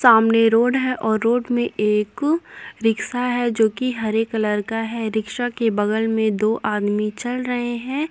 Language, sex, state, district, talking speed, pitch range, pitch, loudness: Hindi, female, Uttar Pradesh, Jyotiba Phule Nagar, 180 wpm, 220-245 Hz, 225 Hz, -20 LUFS